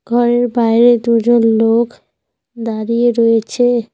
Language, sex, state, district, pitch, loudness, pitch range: Bengali, female, West Bengal, Cooch Behar, 235 Hz, -13 LUFS, 225-240 Hz